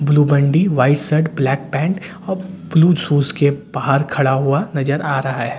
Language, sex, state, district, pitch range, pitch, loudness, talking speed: Hindi, male, Bihar, Katihar, 140-165 Hz, 145 Hz, -17 LUFS, 170 wpm